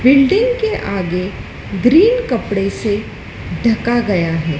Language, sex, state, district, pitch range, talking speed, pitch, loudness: Hindi, female, Madhya Pradesh, Dhar, 190-285 Hz, 115 wpm, 220 Hz, -16 LUFS